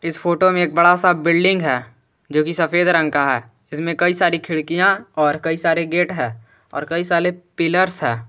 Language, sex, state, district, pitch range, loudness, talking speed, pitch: Hindi, male, Jharkhand, Garhwa, 150-175 Hz, -17 LUFS, 195 wpm, 165 Hz